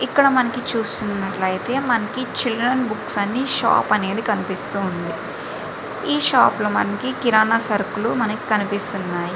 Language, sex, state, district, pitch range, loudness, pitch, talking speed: Telugu, female, Andhra Pradesh, Visakhapatnam, 200-245 Hz, -20 LUFS, 215 Hz, 110 wpm